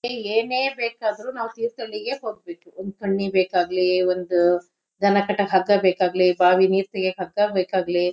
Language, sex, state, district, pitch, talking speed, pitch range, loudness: Kannada, female, Karnataka, Shimoga, 195 Hz, 125 wpm, 185-225 Hz, -22 LUFS